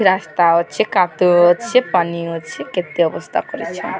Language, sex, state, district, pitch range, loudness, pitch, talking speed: Odia, female, Odisha, Sambalpur, 170-185 Hz, -17 LUFS, 175 Hz, 135 wpm